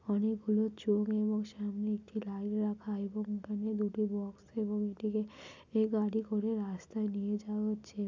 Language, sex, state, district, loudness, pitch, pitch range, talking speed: Bengali, female, West Bengal, Malda, -35 LUFS, 210 Hz, 210-215 Hz, 155 wpm